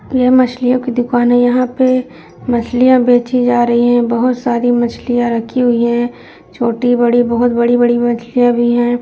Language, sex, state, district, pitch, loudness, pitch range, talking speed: Hindi, female, Uttar Pradesh, Jyotiba Phule Nagar, 245 Hz, -13 LUFS, 240-250 Hz, 160 wpm